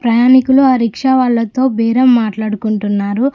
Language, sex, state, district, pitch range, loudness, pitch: Telugu, female, Telangana, Mahabubabad, 220-260 Hz, -12 LUFS, 235 Hz